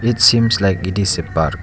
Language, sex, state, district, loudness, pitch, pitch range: English, male, Arunachal Pradesh, Lower Dibang Valley, -15 LUFS, 100 Hz, 90-115 Hz